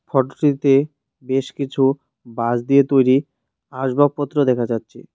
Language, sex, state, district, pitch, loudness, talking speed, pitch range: Bengali, male, West Bengal, Cooch Behar, 135 Hz, -19 LUFS, 105 wpm, 125-140 Hz